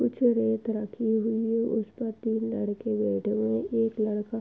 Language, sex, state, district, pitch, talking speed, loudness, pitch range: Hindi, female, Uttar Pradesh, Etah, 225 Hz, 190 wpm, -28 LUFS, 210-225 Hz